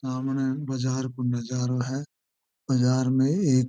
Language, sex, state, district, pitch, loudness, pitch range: Marwari, male, Rajasthan, Churu, 130 Hz, -26 LUFS, 125-135 Hz